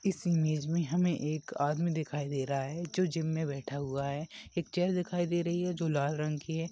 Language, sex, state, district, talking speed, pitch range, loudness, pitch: Hindi, male, Maharashtra, Chandrapur, 240 wpm, 145-175 Hz, -33 LUFS, 160 Hz